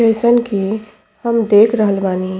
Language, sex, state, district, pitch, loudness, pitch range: Bhojpuri, female, Uttar Pradesh, Ghazipur, 215 Hz, -15 LUFS, 200-230 Hz